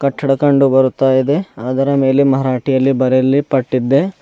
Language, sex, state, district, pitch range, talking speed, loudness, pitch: Kannada, male, Karnataka, Bidar, 130-140 Hz, 130 wpm, -14 LUFS, 135 Hz